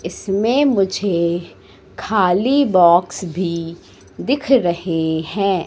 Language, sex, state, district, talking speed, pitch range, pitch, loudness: Hindi, female, Madhya Pradesh, Katni, 85 wpm, 170-205 Hz, 180 Hz, -17 LUFS